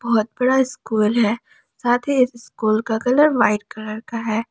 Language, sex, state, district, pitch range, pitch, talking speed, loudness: Hindi, female, Jharkhand, Palamu, 220-255 Hz, 235 Hz, 175 wpm, -20 LUFS